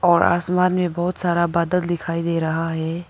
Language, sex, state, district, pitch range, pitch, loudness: Hindi, female, Arunachal Pradesh, Papum Pare, 165-180 Hz, 170 Hz, -20 LUFS